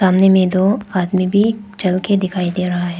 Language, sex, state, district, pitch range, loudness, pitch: Hindi, female, Arunachal Pradesh, Papum Pare, 185-200 Hz, -16 LUFS, 185 Hz